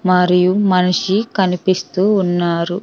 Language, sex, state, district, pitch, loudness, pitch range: Telugu, female, Andhra Pradesh, Sri Satya Sai, 185 Hz, -15 LUFS, 180-190 Hz